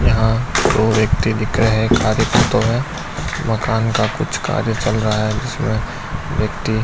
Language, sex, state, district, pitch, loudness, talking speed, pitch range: Hindi, male, Uttar Pradesh, Gorakhpur, 110 Hz, -18 LUFS, 165 wpm, 110-120 Hz